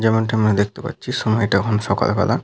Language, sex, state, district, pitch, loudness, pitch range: Bengali, male, West Bengal, Paschim Medinipur, 110 Hz, -19 LUFS, 100-110 Hz